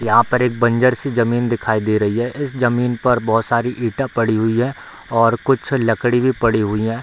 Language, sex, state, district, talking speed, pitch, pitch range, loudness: Hindi, male, Bihar, Bhagalpur, 220 wpm, 120 Hz, 115-125 Hz, -17 LUFS